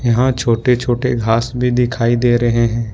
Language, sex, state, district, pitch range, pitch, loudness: Hindi, male, Jharkhand, Ranchi, 115-125 Hz, 120 Hz, -15 LUFS